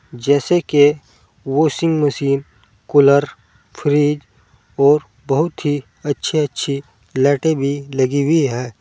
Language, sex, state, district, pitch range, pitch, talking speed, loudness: Hindi, male, Uttar Pradesh, Saharanpur, 130-145 Hz, 140 Hz, 110 wpm, -17 LUFS